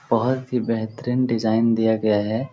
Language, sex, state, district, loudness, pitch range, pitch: Hindi, male, Bihar, Lakhisarai, -21 LUFS, 110-125 Hz, 115 Hz